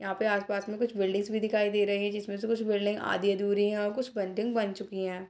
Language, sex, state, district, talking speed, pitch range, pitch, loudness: Hindi, female, Bihar, Purnia, 260 wpm, 200-215 Hz, 205 Hz, -30 LUFS